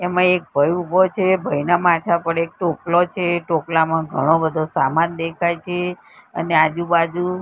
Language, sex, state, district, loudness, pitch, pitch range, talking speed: Gujarati, female, Gujarat, Gandhinagar, -19 LUFS, 170 Hz, 165-180 Hz, 160 wpm